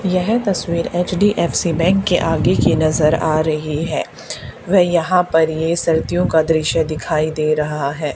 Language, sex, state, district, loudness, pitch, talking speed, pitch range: Hindi, female, Haryana, Charkhi Dadri, -17 LUFS, 160 Hz, 160 wpm, 155-175 Hz